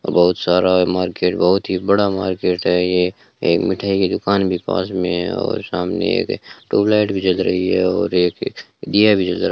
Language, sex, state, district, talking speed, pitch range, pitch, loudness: Hindi, male, Rajasthan, Bikaner, 210 wpm, 90-100 Hz, 90 Hz, -18 LUFS